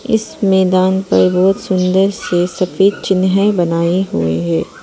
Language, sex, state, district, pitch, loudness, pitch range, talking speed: Hindi, female, Arunachal Pradesh, Papum Pare, 185 Hz, -14 LUFS, 175-195 Hz, 135 wpm